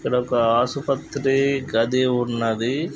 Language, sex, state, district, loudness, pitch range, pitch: Telugu, male, Andhra Pradesh, Guntur, -21 LUFS, 120-140 Hz, 125 Hz